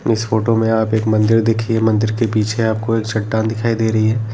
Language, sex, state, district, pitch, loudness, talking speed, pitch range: Hindi, male, Jharkhand, Jamtara, 110 Hz, -16 LUFS, 235 wpm, 110-115 Hz